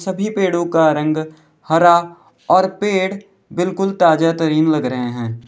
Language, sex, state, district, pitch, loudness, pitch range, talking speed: Hindi, male, Uttar Pradesh, Lalitpur, 170 Hz, -16 LUFS, 155-190 Hz, 140 wpm